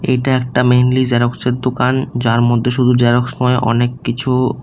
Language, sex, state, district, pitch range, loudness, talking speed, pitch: Bengali, male, Tripura, West Tripura, 120-125 Hz, -15 LUFS, 140 wpm, 125 Hz